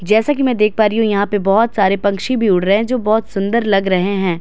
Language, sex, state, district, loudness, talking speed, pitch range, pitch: Hindi, female, Bihar, Katihar, -15 LUFS, 300 wpm, 195-225 Hz, 205 Hz